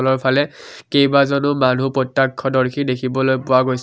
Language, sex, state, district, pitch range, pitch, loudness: Assamese, male, Assam, Kamrup Metropolitan, 130-140 Hz, 130 Hz, -17 LUFS